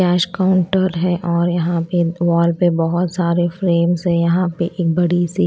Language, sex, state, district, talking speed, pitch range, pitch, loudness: Hindi, female, Odisha, Malkangiri, 185 wpm, 170-180 Hz, 175 Hz, -17 LUFS